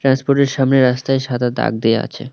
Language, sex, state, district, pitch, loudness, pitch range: Bengali, male, West Bengal, Cooch Behar, 130 Hz, -16 LUFS, 125-135 Hz